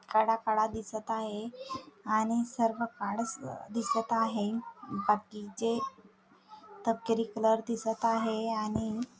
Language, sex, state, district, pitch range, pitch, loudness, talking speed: Marathi, female, Maharashtra, Dhule, 220-235 Hz, 225 Hz, -32 LUFS, 100 wpm